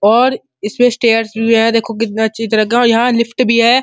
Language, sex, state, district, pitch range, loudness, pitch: Hindi, male, Uttar Pradesh, Muzaffarnagar, 225-240 Hz, -13 LUFS, 230 Hz